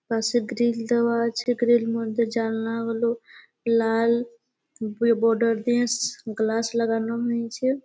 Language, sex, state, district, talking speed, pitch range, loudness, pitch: Bengali, female, West Bengal, Malda, 105 wpm, 230-240 Hz, -24 LUFS, 230 Hz